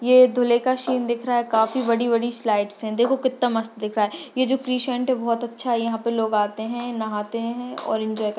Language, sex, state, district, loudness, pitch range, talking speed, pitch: Hindi, male, Maharashtra, Dhule, -23 LUFS, 220-250 Hz, 235 wpm, 235 Hz